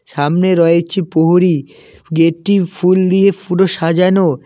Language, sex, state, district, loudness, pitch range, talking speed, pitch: Bengali, male, West Bengal, Cooch Behar, -13 LUFS, 165-185 Hz, 105 wpm, 175 Hz